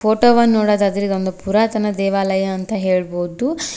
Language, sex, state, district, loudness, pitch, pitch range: Kannada, female, Karnataka, Koppal, -17 LUFS, 200 Hz, 190-220 Hz